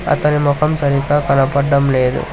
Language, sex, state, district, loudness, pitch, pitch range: Telugu, male, Telangana, Hyderabad, -14 LUFS, 140 Hz, 140-145 Hz